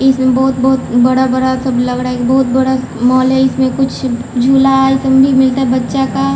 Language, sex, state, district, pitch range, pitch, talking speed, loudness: Hindi, female, Bihar, Patna, 255-265 Hz, 260 Hz, 190 wpm, -12 LUFS